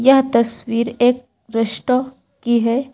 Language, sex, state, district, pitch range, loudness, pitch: Hindi, female, Uttar Pradesh, Lucknow, 230-255 Hz, -18 LUFS, 240 Hz